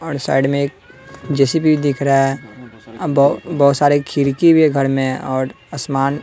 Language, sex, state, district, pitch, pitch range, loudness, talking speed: Hindi, male, Bihar, West Champaran, 140 Hz, 135-145 Hz, -16 LUFS, 175 wpm